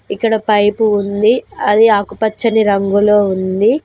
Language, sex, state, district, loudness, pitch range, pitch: Telugu, female, Telangana, Mahabubabad, -13 LUFS, 205-220 Hz, 210 Hz